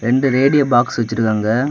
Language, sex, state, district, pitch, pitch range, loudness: Tamil, male, Tamil Nadu, Kanyakumari, 120 Hz, 110-135 Hz, -15 LUFS